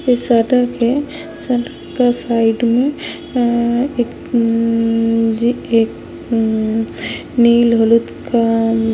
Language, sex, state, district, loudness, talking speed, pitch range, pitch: Hindi, female, Chhattisgarh, Sukma, -15 LUFS, 135 wpm, 230-245 Hz, 235 Hz